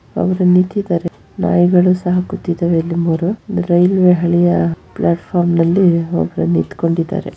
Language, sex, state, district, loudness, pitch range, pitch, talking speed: Kannada, female, Karnataka, Shimoga, -15 LUFS, 165-180 Hz, 175 Hz, 105 wpm